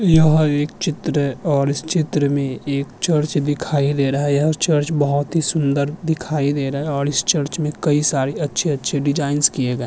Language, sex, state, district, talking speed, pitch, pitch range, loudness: Hindi, male, Uttarakhand, Tehri Garhwal, 205 wpm, 145 Hz, 140-155 Hz, -19 LUFS